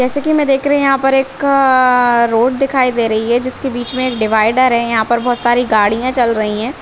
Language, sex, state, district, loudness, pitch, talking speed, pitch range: Hindi, female, Uttarakhand, Uttarkashi, -13 LUFS, 250 Hz, 245 wpm, 235-270 Hz